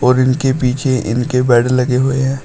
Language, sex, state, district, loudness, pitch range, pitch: Hindi, male, Uttar Pradesh, Shamli, -14 LUFS, 125-130 Hz, 130 Hz